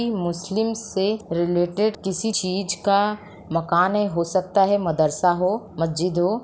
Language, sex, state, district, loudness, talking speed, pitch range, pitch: Hindi, female, Bihar, Sitamarhi, -22 LUFS, 160 wpm, 175-210 Hz, 190 Hz